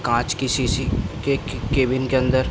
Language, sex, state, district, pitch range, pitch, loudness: Hindi, male, Bihar, Gopalganj, 120-130 Hz, 130 Hz, -22 LUFS